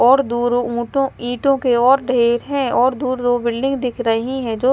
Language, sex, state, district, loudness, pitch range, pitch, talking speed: Hindi, female, Maharashtra, Mumbai Suburban, -18 LUFS, 240-265 Hz, 250 Hz, 215 wpm